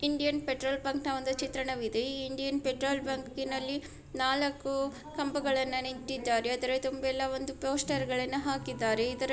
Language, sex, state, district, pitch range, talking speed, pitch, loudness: Kannada, female, Karnataka, Dakshina Kannada, 260-275 Hz, 135 wpm, 270 Hz, -32 LUFS